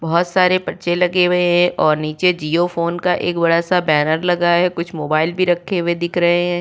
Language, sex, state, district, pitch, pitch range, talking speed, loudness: Hindi, female, Uttar Pradesh, Budaun, 175 Hz, 170-180 Hz, 225 wpm, -17 LUFS